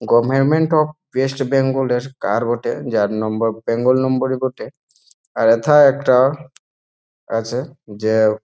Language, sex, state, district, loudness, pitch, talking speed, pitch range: Bengali, male, West Bengal, Jalpaiguri, -17 LUFS, 125 Hz, 130 wpm, 110-135 Hz